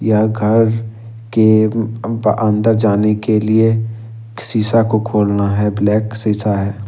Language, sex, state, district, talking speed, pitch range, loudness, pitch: Hindi, male, Jharkhand, Ranchi, 120 wpm, 105-115 Hz, -15 LUFS, 110 Hz